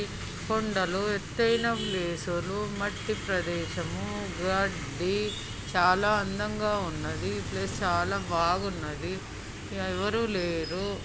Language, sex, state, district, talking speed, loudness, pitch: Telugu, male, Andhra Pradesh, Krishna, 80 wpm, -29 LUFS, 180 Hz